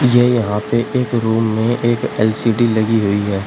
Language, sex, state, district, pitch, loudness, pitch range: Hindi, male, Uttar Pradesh, Shamli, 115 Hz, -16 LUFS, 110-120 Hz